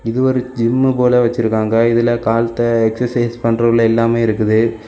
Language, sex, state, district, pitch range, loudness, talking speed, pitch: Tamil, male, Tamil Nadu, Kanyakumari, 115-120 Hz, -15 LUFS, 135 wpm, 115 Hz